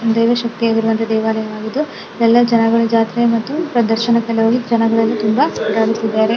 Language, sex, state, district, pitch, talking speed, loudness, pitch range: Kannada, female, Karnataka, Dakshina Kannada, 230 Hz, 105 wpm, -15 LUFS, 225-235 Hz